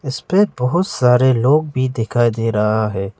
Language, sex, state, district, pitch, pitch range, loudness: Hindi, male, Arunachal Pradesh, Lower Dibang Valley, 125 Hz, 115-145 Hz, -16 LUFS